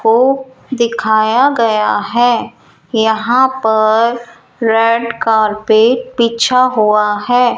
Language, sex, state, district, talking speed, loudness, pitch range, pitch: Hindi, female, Rajasthan, Jaipur, 85 wpm, -12 LUFS, 220-245 Hz, 230 Hz